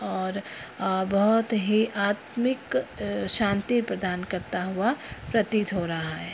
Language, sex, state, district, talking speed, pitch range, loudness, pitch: Hindi, female, Bihar, Purnia, 135 wpm, 185-220 Hz, -26 LUFS, 200 Hz